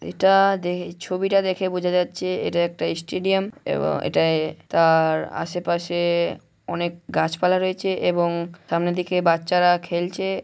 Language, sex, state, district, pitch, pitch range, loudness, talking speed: Bengali, male, West Bengal, Malda, 180 Hz, 170-185 Hz, -22 LUFS, 125 wpm